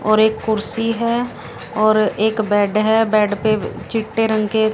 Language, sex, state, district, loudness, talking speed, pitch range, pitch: Hindi, female, Haryana, Jhajjar, -18 LUFS, 165 wpm, 215-225 Hz, 220 Hz